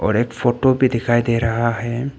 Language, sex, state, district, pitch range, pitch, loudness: Hindi, male, Arunachal Pradesh, Papum Pare, 115-125 Hz, 120 Hz, -18 LUFS